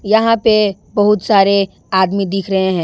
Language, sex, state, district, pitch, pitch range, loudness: Hindi, female, Jharkhand, Ranchi, 200 Hz, 190-210 Hz, -14 LUFS